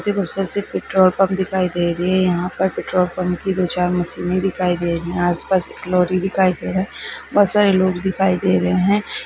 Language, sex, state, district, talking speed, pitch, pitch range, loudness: Maithili, female, Bihar, Begusarai, 225 wpm, 185 Hz, 180-190 Hz, -19 LUFS